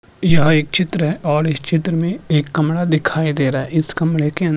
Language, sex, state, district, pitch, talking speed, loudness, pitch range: Hindi, male, Uttarakhand, Tehri Garhwal, 160 Hz, 250 wpm, -17 LUFS, 150-170 Hz